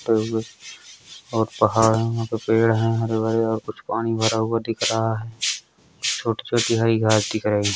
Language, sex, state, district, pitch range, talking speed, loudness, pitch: Hindi, male, Uttar Pradesh, Hamirpur, 110-115 Hz, 170 wpm, -22 LUFS, 110 Hz